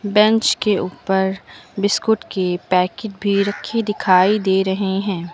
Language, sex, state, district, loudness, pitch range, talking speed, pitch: Hindi, female, Uttar Pradesh, Lucknow, -18 LUFS, 190-210 Hz, 135 wpm, 200 Hz